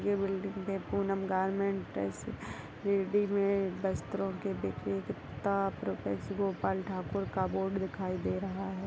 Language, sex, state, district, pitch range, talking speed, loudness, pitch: Hindi, male, Bihar, Bhagalpur, 185-195 Hz, 135 wpm, -34 LUFS, 190 Hz